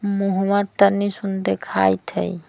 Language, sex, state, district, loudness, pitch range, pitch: Magahi, female, Jharkhand, Palamu, -20 LUFS, 170-200 Hz, 195 Hz